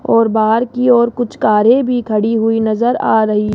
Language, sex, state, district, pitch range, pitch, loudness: Hindi, female, Rajasthan, Jaipur, 220-245 Hz, 225 Hz, -13 LUFS